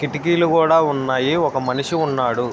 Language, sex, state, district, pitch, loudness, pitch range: Telugu, male, Andhra Pradesh, Srikakulam, 145 Hz, -18 LUFS, 130-160 Hz